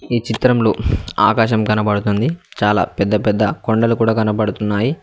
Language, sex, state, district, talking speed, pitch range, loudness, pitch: Telugu, male, Telangana, Mahabubabad, 120 wpm, 105-115 Hz, -17 LUFS, 110 Hz